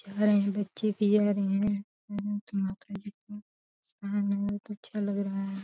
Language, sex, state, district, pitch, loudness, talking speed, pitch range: Hindi, female, Uttar Pradesh, Deoria, 205 Hz, -30 LUFS, 95 wpm, 200-210 Hz